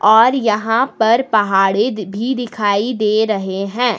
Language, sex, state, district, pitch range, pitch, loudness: Hindi, female, Jharkhand, Deoghar, 205-240 Hz, 220 Hz, -16 LUFS